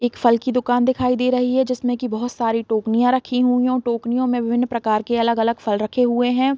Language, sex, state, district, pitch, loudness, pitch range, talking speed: Hindi, female, Bihar, East Champaran, 245 Hz, -19 LUFS, 235-250 Hz, 245 wpm